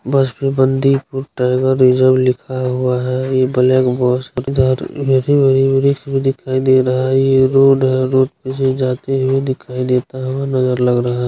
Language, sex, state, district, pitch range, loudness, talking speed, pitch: Hindi, male, Bihar, Jahanabad, 125-135 Hz, -15 LUFS, 135 wpm, 130 Hz